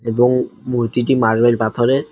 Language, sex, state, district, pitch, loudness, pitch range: Bengali, male, West Bengal, Jhargram, 120 Hz, -16 LUFS, 115-125 Hz